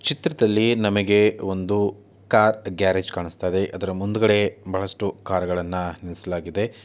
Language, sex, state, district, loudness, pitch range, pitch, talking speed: Kannada, male, Karnataka, Chamarajanagar, -22 LUFS, 95-105 Hz, 95 Hz, 105 wpm